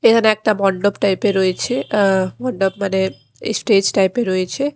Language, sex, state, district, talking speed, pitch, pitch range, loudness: Bengali, female, Odisha, Khordha, 150 wpm, 200 Hz, 190-220 Hz, -17 LUFS